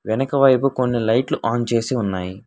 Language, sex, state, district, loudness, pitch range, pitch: Telugu, male, Telangana, Hyderabad, -19 LUFS, 110-135 Hz, 120 Hz